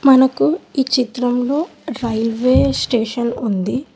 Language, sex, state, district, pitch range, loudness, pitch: Telugu, female, Telangana, Hyderabad, 230-265 Hz, -17 LUFS, 245 Hz